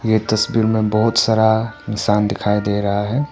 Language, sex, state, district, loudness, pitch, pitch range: Hindi, male, Arunachal Pradesh, Papum Pare, -17 LUFS, 110 Hz, 105-110 Hz